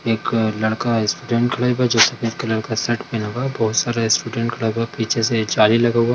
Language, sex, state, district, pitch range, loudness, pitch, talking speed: Hindi, male, Bihar, Darbhanga, 110-120 Hz, -19 LUFS, 115 Hz, 235 wpm